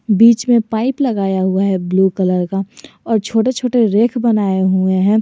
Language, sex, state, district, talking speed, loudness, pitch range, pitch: Hindi, male, Jharkhand, Garhwa, 185 wpm, -15 LUFS, 190-235 Hz, 210 Hz